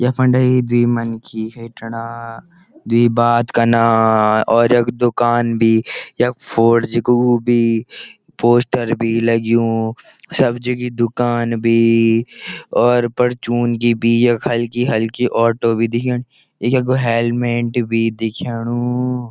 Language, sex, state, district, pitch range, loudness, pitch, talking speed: Garhwali, male, Uttarakhand, Uttarkashi, 115-120 Hz, -16 LUFS, 120 Hz, 115 wpm